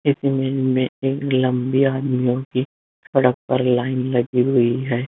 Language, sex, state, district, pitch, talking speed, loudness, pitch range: Hindi, male, Bihar, Jamui, 130 Hz, 140 wpm, -20 LUFS, 125-135 Hz